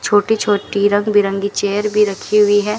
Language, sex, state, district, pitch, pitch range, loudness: Hindi, female, Rajasthan, Bikaner, 205 Hz, 205-210 Hz, -15 LUFS